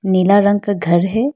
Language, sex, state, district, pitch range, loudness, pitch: Hindi, female, Arunachal Pradesh, Lower Dibang Valley, 185-205 Hz, -14 LUFS, 200 Hz